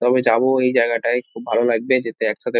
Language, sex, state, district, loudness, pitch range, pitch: Bengali, male, West Bengal, North 24 Parganas, -19 LUFS, 115-130 Hz, 120 Hz